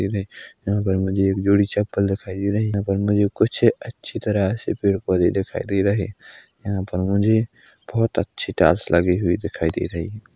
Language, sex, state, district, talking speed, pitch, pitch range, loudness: Hindi, male, Chhattisgarh, Korba, 205 wpm, 100 Hz, 95-105 Hz, -21 LUFS